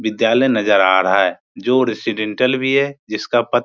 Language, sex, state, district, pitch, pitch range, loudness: Hindi, male, Bihar, Supaul, 115 Hz, 105-130 Hz, -16 LUFS